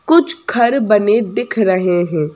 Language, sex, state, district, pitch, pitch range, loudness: Hindi, female, Madhya Pradesh, Bhopal, 210 Hz, 180-245 Hz, -14 LUFS